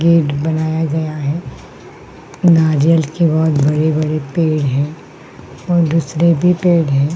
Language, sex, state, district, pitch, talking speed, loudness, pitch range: Hindi, female, Uttarakhand, Tehri Garhwal, 160 Hz, 125 wpm, -15 LUFS, 150-165 Hz